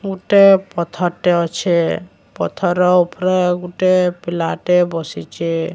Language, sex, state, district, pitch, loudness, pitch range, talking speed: Odia, female, Odisha, Sambalpur, 180 Hz, -16 LUFS, 170-185 Hz, 115 wpm